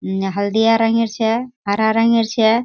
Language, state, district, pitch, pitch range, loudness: Surjapuri, Bihar, Kishanganj, 225 Hz, 215-230 Hz, -17 LUFS